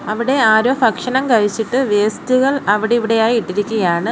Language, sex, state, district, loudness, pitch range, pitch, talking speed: Malayalam, female, Kerala, Kollam, -15 LUFS, 210-255 Hz, 225 Hz, 100 wpm